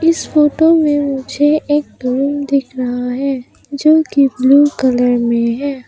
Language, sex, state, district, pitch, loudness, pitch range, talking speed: Hindi, female, Arunachal Pradesh, Papum Pare, 280 Hz, -14 LUFS, 255-295 Hz, 155 wpm